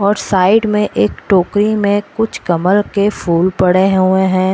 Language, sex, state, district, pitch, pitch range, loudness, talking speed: Hindi, female, Bihar, Purnia, 195 Hz, 185-205 Hz, -13 LUFS, 170 wpm